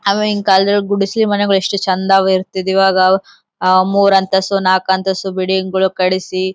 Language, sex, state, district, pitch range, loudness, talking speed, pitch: Kannada, female, Karnataka, Bellary, 185-195 Hz, -14 LUFS, 135 wpm, 190 Hz